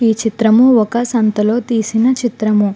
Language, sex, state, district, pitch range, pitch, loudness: Telugu, female, Andhra Pradesh, Guntur, 215-240 Hz, 225 Hz, -14 LUFS